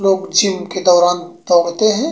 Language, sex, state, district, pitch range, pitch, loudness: Bhojpuri, male, Uttar Pradesh, Gorakhpur, 175-195 Hz, 185 Hz, -14 LUFS